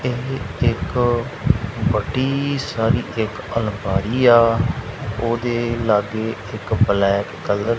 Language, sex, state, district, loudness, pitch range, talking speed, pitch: Punjabi, male, Punjab, Kapurthala, -20 LUFS, 105-120 Hz, 100 wpm, 115 Hz